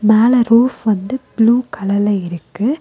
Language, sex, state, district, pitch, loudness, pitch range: Tamil, female, Tamil Nadu, Nilgiris, 220 Hz, -15 LUFS, 205-245 Hz